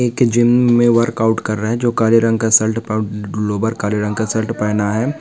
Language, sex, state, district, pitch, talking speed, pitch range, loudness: Hindi, male, Maharashtra, Nagpur, 110 Hz, 220 wpm, 110-120 Hz, -16 LUFS